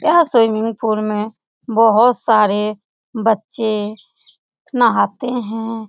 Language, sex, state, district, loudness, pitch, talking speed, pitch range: Hindi, female, Bihar, Lakhisarai, -16 LUFS, 225 Hz, 100 wpm, 215-235 Hz